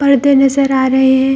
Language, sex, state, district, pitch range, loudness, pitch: Hindi, female, Bihar, Jamui, 265-275 Hz, -11 LUFS, 270 Hz